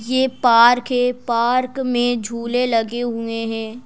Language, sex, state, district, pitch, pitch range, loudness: Hindi, female, Madhya Pradesh, Bhopal, 240 Hz, 230-250 Hz, -18 LUFS